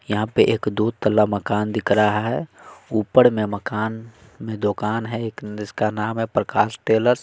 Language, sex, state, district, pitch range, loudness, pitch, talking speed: Hindi, male, Bihar, West Champaran, 105-115 Hz, -21 LUFS, 110 Hz, 180 wpm